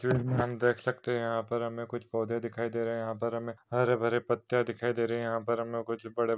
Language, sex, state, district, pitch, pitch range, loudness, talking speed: Hindi, male, Maharashtra, Pune, 115 Hz, 115-120 Hz, -32 LUFS, 265 wpm